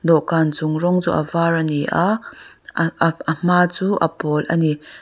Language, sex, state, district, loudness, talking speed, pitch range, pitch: Mizo, female, Mizoram, Aizawl, -19 LUFS, 165 wpm, 155-175 Hz, 165 Hz